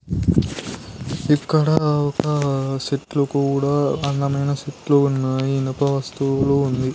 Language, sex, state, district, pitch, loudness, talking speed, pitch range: Telugu, male, Andhra Pradesh, Sri Satya Sai, 140 Hz, -20 LUFS, 80 wpm, 135-145 Hz